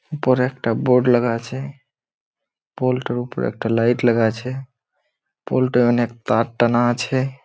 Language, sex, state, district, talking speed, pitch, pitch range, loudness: Bengali, male, West Bengal, Malda, 135 wpm, 125 Hz, 120-130 Hz, -20 LUFS